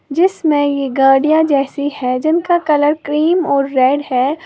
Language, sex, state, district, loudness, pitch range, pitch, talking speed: Hindi, female, Uttar Pradesh, Lalitpur, -14 LUFS, 275-315 Hz, 290 Hz, 150 wpm